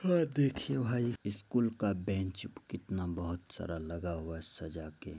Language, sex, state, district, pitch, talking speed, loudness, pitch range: Hindi, male, Bihar, Begusarai, 95 Hz, 160 wpm, -36 LUFS, 85-120 Hz